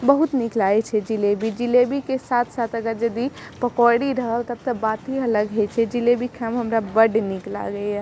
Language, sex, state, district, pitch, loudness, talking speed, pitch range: Maithili, female, Bihar, Madhepura, 235 Hz, -21 LUFS, 200 wpm, 220-245 Hz